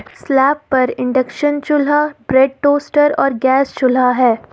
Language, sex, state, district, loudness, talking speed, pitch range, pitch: Hindi, female, Jharkhand, Ranchi, -14 LUFS, 130 wpm, 255-290 Hz, 270 Hz